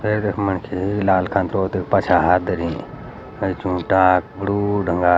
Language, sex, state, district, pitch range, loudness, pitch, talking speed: Garhwali, male, Uttarakhand, Uttarkashi, 90-100 Hz, -19 LUFS, 95 Hz, 150 wpm